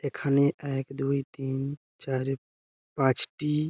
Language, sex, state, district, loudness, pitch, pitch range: Bengali, male, West Bengal, Jhargram, -28 LUFS, 135 Hz, 135-140 Hz